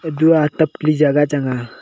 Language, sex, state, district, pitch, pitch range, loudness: Wancho, male, Arunachal Pradesh, Longding, 150 Hz, 145-160 Hz, -16 LUFS